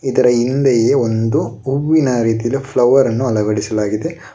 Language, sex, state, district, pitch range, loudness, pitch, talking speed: Kannada, male, Karnataka, Bangalore, 110-135 Hz, -15 LUFS, 120 Hz, 110 wpm